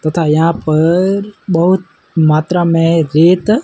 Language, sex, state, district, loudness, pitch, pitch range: Hindi, male, Rajasthan, Jaisalmer, -12 LUFS, 165 Hz, 160-185 Hz